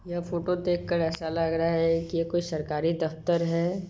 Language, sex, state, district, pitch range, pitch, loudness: Hindi, male, Bihar, Sitamarhi, 165-175 Hz, 165 Hz, -27 LUFS